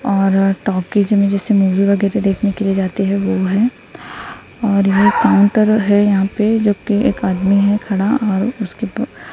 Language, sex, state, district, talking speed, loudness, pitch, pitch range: Hindi, female, Maharashtra, Gondia, 180 wpm, -15 LUFS, 200 Hz, 195-210 Hz